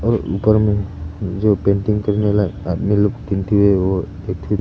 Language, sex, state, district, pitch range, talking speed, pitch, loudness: Hindi, male, Arunachal Pradesh, Papum Pare, 95-105 Hz, 145 wpm, 100 Hz, -18 LUFS